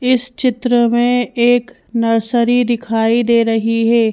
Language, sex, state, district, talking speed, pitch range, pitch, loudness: Hindi, female, Madhya Pradesh, Bhopal, 130 wpm, 230-245 Hz, 235 Hz, -15 LUFS